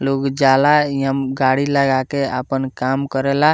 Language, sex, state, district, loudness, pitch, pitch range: Bhojpuri, male, Bihar, Muzaffarpur, -17 LUFS, 135 Hz, 135-140 Hz